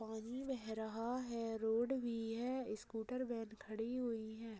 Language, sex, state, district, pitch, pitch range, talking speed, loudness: Hindi, female, Uttar Pradesh, Budaun, 230 Hz, 220-245 Hz, 145 wpm, -43 LUFS